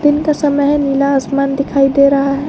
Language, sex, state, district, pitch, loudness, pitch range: Hindi, female, Jharkhand, Garhwa, 275 Hz, -13 LUFS, 275-290 Hz